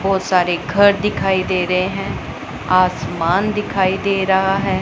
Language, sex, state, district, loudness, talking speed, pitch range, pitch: Hindi, male, Punjab, Pathankot, -17 LUFS, 150 wpm, 185-195 Hz, 190 Hz